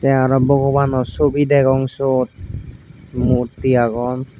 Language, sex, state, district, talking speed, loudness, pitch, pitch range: Chakma, male, Tripura, Unakoti, 110 wpm, -17 LUFS, 130 Hz, 125-135 Hz